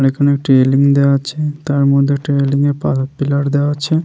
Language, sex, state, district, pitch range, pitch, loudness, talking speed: Bengali, male, West Bengal, Jalpaiguri, 140-145 Hz, 140 Hz, -14 LUFS, 205 wpm